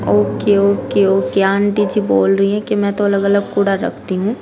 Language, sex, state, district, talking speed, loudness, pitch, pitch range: Hindi, female, Bihar, East Champaran, 205 wpm, -15 LUFS, 200 Hz, 195-205 Hz